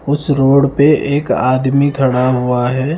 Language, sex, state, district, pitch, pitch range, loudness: Hindi, male, Himachal Pradesh, Shimla, 135 Hz, 130-145 Hz, -13 LUFS